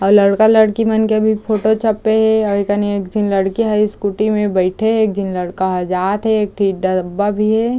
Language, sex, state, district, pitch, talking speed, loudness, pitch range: Chhattisgarhi, female, Chhattisgarh, Jashpur, 210 Hz, 215 wpm, -15 LUFS, 195-220 Hz